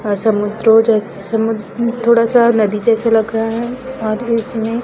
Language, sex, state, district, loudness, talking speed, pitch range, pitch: Hindi, female, Chhattisgarh, Raipur, -15 LUFS, 175 wpm, 220-235 Hz, 225 Hz